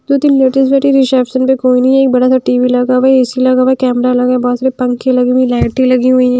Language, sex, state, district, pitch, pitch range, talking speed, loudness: Hindi, female, Haryana, Jhajjar, 255 Hz, 250-260 Hz, 280 wpm, -11 LUFS